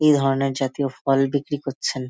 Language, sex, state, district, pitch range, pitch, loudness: Bengali, male, West Bengal, Malda, 135-140 Hz, 135 Hz, -22 LUFS